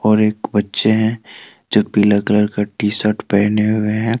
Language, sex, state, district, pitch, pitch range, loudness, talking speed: Hindi, male, Jharkhand, Deoghar, 105 Hz, 105-110 Hz, -16 LUFS, 185 wpm